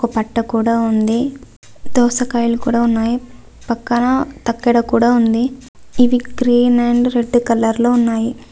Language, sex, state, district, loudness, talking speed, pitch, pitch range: Telugu, female, Andhra Pradesh, Visakhapatnam, -16 LUFS, 135 wpm, 240 Hz, 230-245 Hz